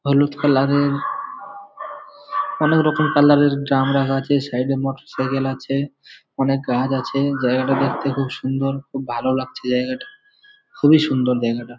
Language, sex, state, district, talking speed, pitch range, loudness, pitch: Bengali, male, West Bengal, Malda, 150 wpm, 135-155 Hz, -19 LUFS, 140 Hz